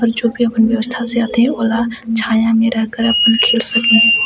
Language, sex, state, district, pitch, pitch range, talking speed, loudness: Chhattisgarhi, female, Chhattisgarh, Sarguja, 230 Hz, 225-235 Hz, 210 wpm, -14 LUFS